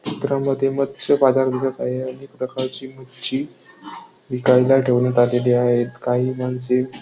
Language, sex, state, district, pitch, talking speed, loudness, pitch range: Marathi, male, Maharashtra, Sindhudurg, 130 Hz, 130 wpm, -20 LUFS, 125-135 Hz